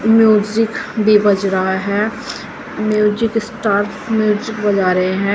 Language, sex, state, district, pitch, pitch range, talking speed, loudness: Hindi, female, Uttar Pradesh, Saharanpur, 210 Hz, 200-220 Hz, 125 wpm, -16 LUFS